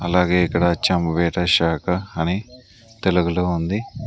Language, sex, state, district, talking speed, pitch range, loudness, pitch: Telugu, male, Andhra Pradesh, Sri Satya Sai, 105 wpm, 85-100 Hz, -20 LUFS, 90 Hz